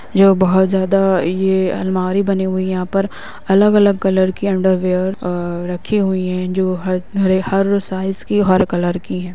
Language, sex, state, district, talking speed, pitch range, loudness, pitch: Hindi, female, Uttar Pradesh, Hamirpur, 175 wpm, 185-195 Hz, -16 LUFS, 190 Hz